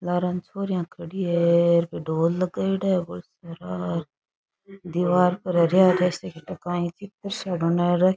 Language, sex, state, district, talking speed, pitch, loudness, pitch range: Rajasthani, female, Rajasthan, Churu, 115 wpm, 175 Hz, -23 LUFS, 170-185 Hz